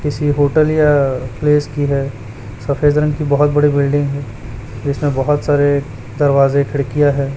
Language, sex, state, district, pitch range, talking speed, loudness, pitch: Hindi, male, Chhattisgarh, Raipur, 135-145 Hz, 155 wpm, -15 LUFS, 140 Hz